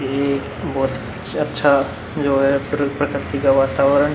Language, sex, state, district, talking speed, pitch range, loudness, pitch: Hindi, male, Bihar, Vaishali, 160 wpm, 135-140 Hz, -19 LUFS, 140 Hz